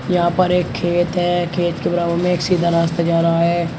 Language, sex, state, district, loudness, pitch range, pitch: Hindi, male, Uttar Pradesh, Shamli, -17 LUFS, 170-175 Hz, 175 Hz